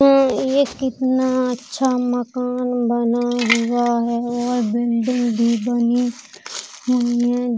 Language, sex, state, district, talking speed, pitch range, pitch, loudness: Hindi, female, Uttar Pradesh, Jalaun, 110 wpm, 235-250 Hz, 245 Hz, -19 LUFS